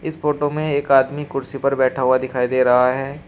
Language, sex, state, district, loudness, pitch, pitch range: Hindi, male, Uttar Pradesh, Shamli, -18 LUFS, 135 Hz, 130-145 Hz